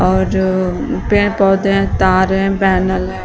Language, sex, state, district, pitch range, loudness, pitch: Hindi, female, Uttar Pradesh, Shamli, 185-195 Hz, -14 LUFS, 190 Hz